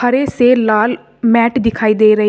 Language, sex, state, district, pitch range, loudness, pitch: Hindi, female, Uttar Pradesh, Shamli, 215-245 Hz, -13 LUFS, 230 Hz